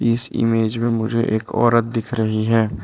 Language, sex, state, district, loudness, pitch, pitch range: Hindi, male, Arunachal Pradesh, Lower Dibang Valley, -18 LUFS, 115 Hz, 110-115 Hz